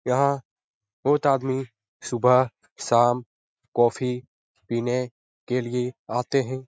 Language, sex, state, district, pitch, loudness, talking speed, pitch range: Hindi, male, Bihar, Jahanabad, 125 Hz, -24 LUFS, 100 wpm, 120-130 Hz